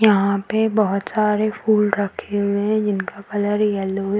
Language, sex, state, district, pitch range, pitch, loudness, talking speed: Hindi, female, Bihar, Darbhanga, 200-215 Hz, 205 Hz, -20 LUFS, 170 wpm